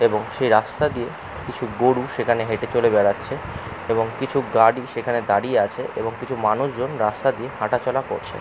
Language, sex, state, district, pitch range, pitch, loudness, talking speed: Bengali, male, West Bengal, Jalpaiguri, 110-130 Hz, 120 Hz, -22 LUFS, 155 wpm